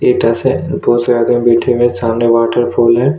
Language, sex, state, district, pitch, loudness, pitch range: Hindi, male, Chhattisgarh, Kabirdham, 120 Hz, -12 LUFS, 115-120 Hz